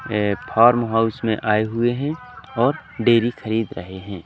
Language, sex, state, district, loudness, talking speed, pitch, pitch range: Hindi, male, Madhya Pradesh, Katni, -20 LUFS, 170 wpm, 115 Hz, 105-120 Hz